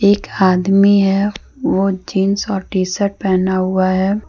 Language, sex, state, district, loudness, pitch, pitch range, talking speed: Hindi, female, Jharkhand, Deoghar, -16 LUFS, 195 Hz, 190-200 Hz, 140 wpm